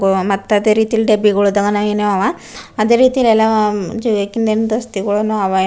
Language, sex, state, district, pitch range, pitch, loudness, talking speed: Kannada, female, Karnataka, Bidar, 200-220 Hz, 210 Hz, -15 LUFS, 125 wpm